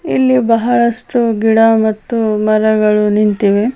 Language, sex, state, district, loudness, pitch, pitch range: Kannada, female, Karnataka, Chamarajanagar, -12 LUFS, 220 Hz, 215-235 Hz